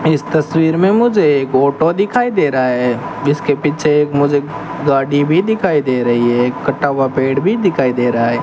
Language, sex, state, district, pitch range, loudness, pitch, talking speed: Hindi, male, Rajasthan, Bikaner, 130-160 Hz, -14 LUFS, 145 Hz, 205 wpm